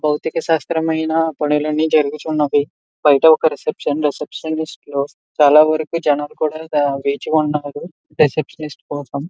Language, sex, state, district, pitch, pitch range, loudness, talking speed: Telugu, male, Andhra Pradesh, Visakhapatnam, 155 Hz, 145-160 Hz, -17 LUFS, 110 wpm